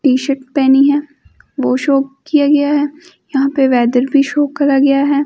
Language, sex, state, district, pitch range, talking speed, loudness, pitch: Hindi, female, Chandigarh, Chandigarh, 270-290 Hz, 195 wpm, -14 LUFS, 280 Hz